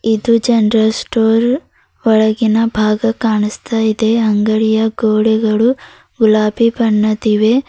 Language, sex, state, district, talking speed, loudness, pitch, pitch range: Kannada, female, Karnataka, Bidar, 85 wpm, -13 LUFS, 220 Hz, 215-230 Hz